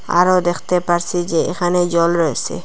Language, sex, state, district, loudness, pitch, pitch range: Bengali, female, Assam, Hailakandi, -17 LUFS, 175 Hz, 170-180 Hz